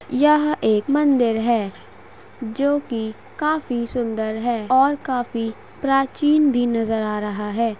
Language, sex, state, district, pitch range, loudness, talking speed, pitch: Hindi, female, Uttar Pradesh, Gorakhpur, 225-280 Hz, -20 LUFS, 125 wpm, 240 Hz